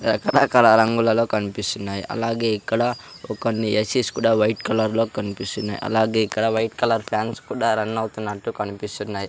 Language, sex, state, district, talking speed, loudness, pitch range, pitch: Telugu, male, Andhra Pradesh, Sri Satya Sai, 140 wpm, -21 LUFS, 105-115 Hz, 110 Hz